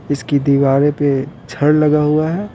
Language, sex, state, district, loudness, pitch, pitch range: Hindi, male, Bihar, Patna, -15 LUFS, 145 Hz, 140-150 Hz